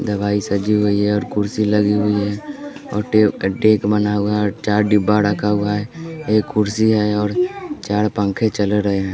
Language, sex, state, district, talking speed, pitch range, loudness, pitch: Hindi, male, Bihar, West Champaran, 195 wpm, 105-110 Hz, -18 LUFS, 105 Hz